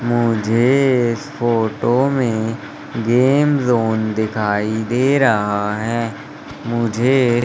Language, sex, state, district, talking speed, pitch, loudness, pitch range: Hindi, male, Madhya Pradesh, Katni, 90 wpm, 120 Hz, -17 LUFS, 110-130 Hz